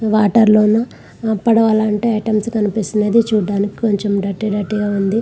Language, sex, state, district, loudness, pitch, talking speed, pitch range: Telugu, female, Andhra Pradesh, Visakhapatnam, -16 LUFS, 215 Hz, 125 wpm, 205-220 Hz